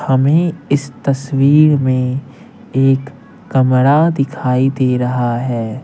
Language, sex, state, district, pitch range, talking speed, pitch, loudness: Hindi, male, Bihar, Patna, 130-145 Hz, 105 wpm, 135 Hz, -14 LUFS